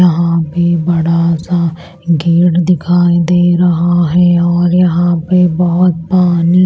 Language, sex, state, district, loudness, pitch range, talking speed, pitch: Hindi, female, Maharashtra, Washim, -11 LUFS, 170-175 Hz, 125 wpm, 175 Hz